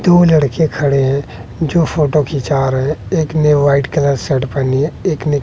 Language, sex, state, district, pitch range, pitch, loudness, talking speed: Hindi, male, Bihar, West Champaran, 135-155 Hz, 145 Hz, -14 LUFS, 185 wpm